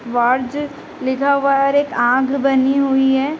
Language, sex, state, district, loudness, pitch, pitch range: Hindi, female, Bihar, Gopalganj, -16 LUFS, 275 Hz, 260-280 Hz